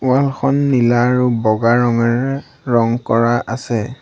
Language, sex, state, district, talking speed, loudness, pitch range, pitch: Assamese, male, Assam, Sonitpur, 135 wpm, -16 LUFS, 115-135 Hz, 120 Hz